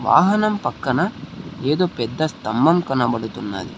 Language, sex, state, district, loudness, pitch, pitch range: Telugu, male, Telangana, Hyderabad, -20 LUFS, 155 Hz, 120-180 Hz